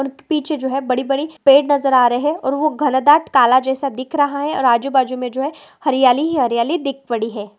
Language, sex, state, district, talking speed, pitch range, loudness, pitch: Hindi, female, Goa, North and South Goa, 235 wpm, 255-290 Hz, -17 LUFS, 275 Hz